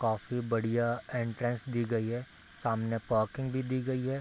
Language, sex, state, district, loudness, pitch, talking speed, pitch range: Hindi, male, Bihar, Gopalganj, -33 LUFS, 120 Hz, 185 wpm, 115-130 Hz